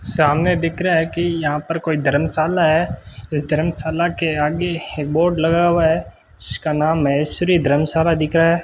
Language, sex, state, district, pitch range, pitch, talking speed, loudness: Hindi, male, Rajasthan, Bikaner, 150-170 Hz, 160 Hz, 175 wpm, -18 LUFS